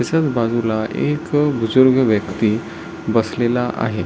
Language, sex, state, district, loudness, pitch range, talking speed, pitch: Marathi, male, Maharashtra, Solapur, -18 LUFS, 110-130 Hz, 105 wpm, 115 Hz